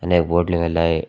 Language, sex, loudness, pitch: Marathi, male, -19 LUFS, 85 Hz